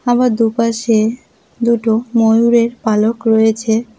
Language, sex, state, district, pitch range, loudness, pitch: Bengali, female, West Bengal, Cooch Behar, 220-235 Hz, -14 LUFS, 230 Hz